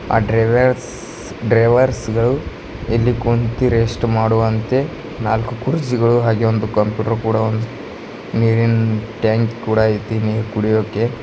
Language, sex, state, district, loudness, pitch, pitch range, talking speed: Kannada, male, Karnataka, Bidar, -17 LUFS, 115 Hz, 110-120 Hz, 120 wpm